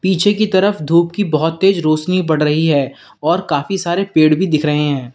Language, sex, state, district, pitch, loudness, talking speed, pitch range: Hindi, male, Uttar Pradesh, Lalitpur, 165 Hz, -15 LUFS, 220 wpm, 150-190 Hz